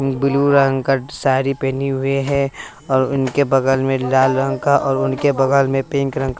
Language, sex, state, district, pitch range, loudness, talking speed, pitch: Hindi, male, Bihar, West Champaran, 135-140 Hz, -17 LUFS, 195 wpm, 135 Hz